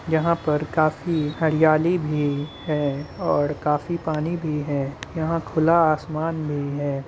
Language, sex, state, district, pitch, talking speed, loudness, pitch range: Hindi, male, Bihar, Muzaffarpur, 155 Hz, 135 wpm, -23 LUFS, 145-160 Hz